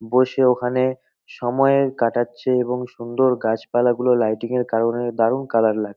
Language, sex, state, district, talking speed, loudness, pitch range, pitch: Bengali, male, West Bengal, North 24 Parganas, 140 wpm, -20 LUFS, 115-130 Hz, 125 Hz